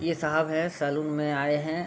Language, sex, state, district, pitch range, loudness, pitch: Hindi, male, Bihar, Gopalganj, 150-160 Hz, -27 LUFS, 155 Hz